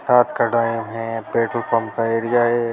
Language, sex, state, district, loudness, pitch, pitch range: Hindi, male, Bihar, Jahanabad, -20 LUFS, 115 Hz, 115-120 Hz